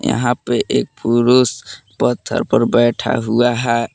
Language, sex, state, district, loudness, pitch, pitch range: Hindi, male, Jharkhand, Palamu, -16 LUFS, 120 Hz, 115-120 Hz